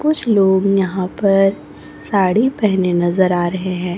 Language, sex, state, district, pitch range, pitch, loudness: Hindi, female, Chhattisgarh, Raipur, 180-205 Hz, 190 Hz, -16 LUFS